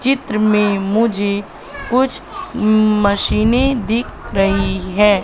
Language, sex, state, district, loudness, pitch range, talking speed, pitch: Hindi, female, Madhya Pradesh, Katni, -16 LUFS, 200-240 Hz, 90 wpm, 215 Hz